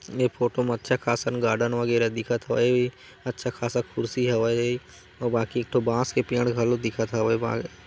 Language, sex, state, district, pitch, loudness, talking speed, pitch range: Chhattisgarhi, male, Chhattisgarh, Korba, 120 Hz, -25 LUFS, 185 wpm, 115-125 Hz